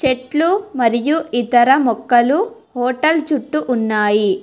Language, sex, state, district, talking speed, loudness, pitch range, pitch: Telugu, female, Telangana, Hyderabad, 95 wpm, -16 LUFS, 240-305 Hz, 255 Hz